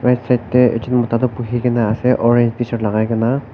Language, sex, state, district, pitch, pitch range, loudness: Nagamese, male, Nagaland, Kohima, 120 Hz, 115-125 Hz, -16 LUFS